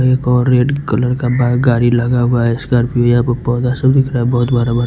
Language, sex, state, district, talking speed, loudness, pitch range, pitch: Hindi, male, Punjab, Fazilka, 260 wpm, -14 LUFS, 120-125 Hz, 125 Hz